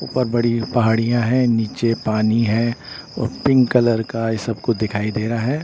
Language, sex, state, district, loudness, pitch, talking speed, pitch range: Hindi, male, Bihar, Patna, -19 LUFS, 115 Hz, 190 wpm, 110-120 Hz